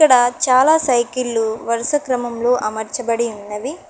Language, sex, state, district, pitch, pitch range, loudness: Telugu, female, Telangana, Hyderabad, 240 Hz, 225-250 Hz, -18 LUFS